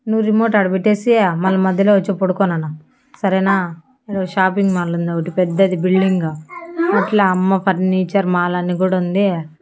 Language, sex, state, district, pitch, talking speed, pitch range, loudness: Telugu, female, Andhra Pradesh, Annamaya, 190 Hz, 145 wpm, 180-200 Hz, -16 LUFS